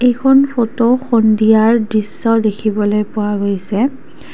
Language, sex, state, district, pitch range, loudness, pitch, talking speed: Assamese, female, Assam, Kamrup Metropolitan, 210-250 Hz, -14 LUFS, 225 Hz, 95 wpm